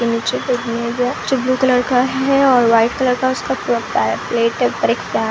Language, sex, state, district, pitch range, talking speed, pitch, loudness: Hindi, female, Bihar, Kishanganj, 235-260 Hz, 260 wpm, 250 Hz, -16 LUFS